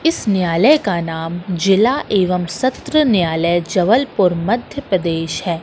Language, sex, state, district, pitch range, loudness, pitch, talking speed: Hindi, female, Madhya Pradesh, Katni, 170-240 Hz, -16 LUFS, 190 Hz, 115 wpm